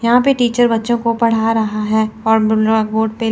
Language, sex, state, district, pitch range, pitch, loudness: Hindi, female, Chandigarh, Chandigarh, 220-235 Hz, 225 Hz, -15 LUFS